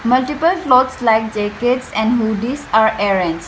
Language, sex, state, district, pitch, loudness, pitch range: English, female, Arunachal Pradesh, Lower Dibang Valley, 225 Hz, -16 LUFS, 215-255 Hz